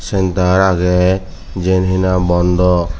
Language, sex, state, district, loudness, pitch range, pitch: Chakma, male, Tripura, Dhalai, -14 LUFS, 90-95 Hz, 90 Hz